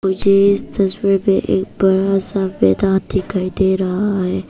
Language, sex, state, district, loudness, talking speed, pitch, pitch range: Hindi, female, Arunachal Pradesh, Papum Pare, -16 LUFS, 160 wpm, 190 Hz, 190-195 Hz